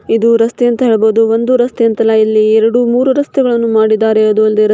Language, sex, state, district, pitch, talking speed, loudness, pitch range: Kannada, female, Karnataka, Shimoga, 225 Hz, 200 wpm, -11 LUFS, 220-240 Hz